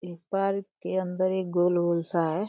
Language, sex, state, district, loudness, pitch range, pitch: Hindi, female, Uttar Pradesh, Deoria, -27 LUFS, 175-190 Hz, 180 Hz